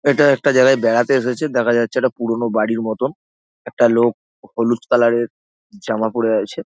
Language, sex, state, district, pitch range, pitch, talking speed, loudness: Bengali, male, West Bengal, Dakshin Dinajpur, 115-130 Hz, 120 Hz, 170 wpm, -17 LUFS